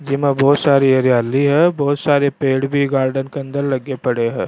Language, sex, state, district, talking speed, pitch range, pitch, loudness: Rajasthani, male, Rajasthan, Churu, 215 wpm, 135-140 Hz, 140 Hz, -16 LUFS